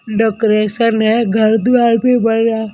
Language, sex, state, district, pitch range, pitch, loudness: Hindi, female, Maharashtra, Mumbai Suburban, 220-230 Hz, 225 Hz, -13 LUFS